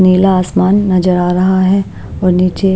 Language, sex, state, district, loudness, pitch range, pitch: Hindi, female, Maharashtra, Washim, -12 LUFS, 185-190 Hz, 185 Hz